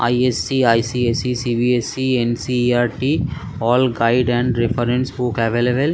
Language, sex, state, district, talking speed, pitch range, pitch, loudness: Bengali, male, West Bengal, Kolkata, 220 wpm, 120-125 Hz, 125 Hz, -18 LUFS